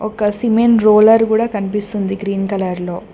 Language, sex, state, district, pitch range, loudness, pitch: Telugu, female, Telangana, Mahabubabad, 195-220 Hz, -15 LUFS, 210 Hz